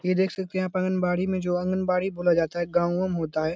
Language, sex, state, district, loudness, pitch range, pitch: Hindi, male, Bihar, Lakhisarai, -25 LUFS, 175-185 Hz, 180 Hz